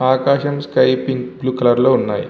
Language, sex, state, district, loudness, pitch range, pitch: Telugu, male, Andhra Pradesh, Visakhapatnam, -16 LUFS, 130-140 Hz, 130 Hz